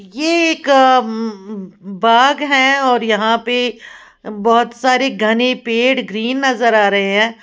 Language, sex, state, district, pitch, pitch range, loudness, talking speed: Hindi, female, Uttar Pradesh, Lalitpur, 235 Hz, 220-260 Hz, -14 LUFS, 135 wpm